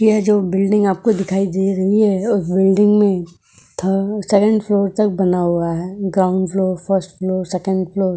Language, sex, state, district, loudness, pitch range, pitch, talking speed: Hindi, female, Uttar Pradesh, Etah, -17 LUFS, 185-205 Hz, 195 Hz, 185 wpm